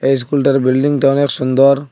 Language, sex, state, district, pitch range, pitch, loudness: Bengali, male, Assam, Hailakandi, 135-140 Hz, 135 Hz, -13 LUFS